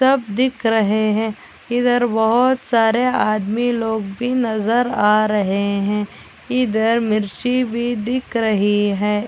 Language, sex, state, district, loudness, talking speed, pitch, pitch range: Hindi, female, Chhattisgarh, Korba, -18 LUFS, 110 wpm, 225 Hz, 210-245 Hz